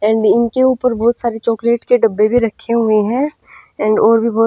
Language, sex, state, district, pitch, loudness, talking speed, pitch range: Hindi, female, Punjab, Pathankot, 230 Hz, -14 LUFS, 215 wpm, 220-240 Hz